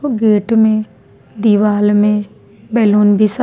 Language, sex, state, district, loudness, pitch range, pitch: Bhojpuri, female, Bihar, East Champaran, -13 LUFS, 210-220 Hz, 210 Hz